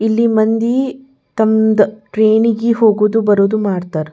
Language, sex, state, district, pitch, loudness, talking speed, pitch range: Kannada, female, Karnataka, Bijapur, 220 Hz, -14 LUFS, 115 wpm, 210-230 Hz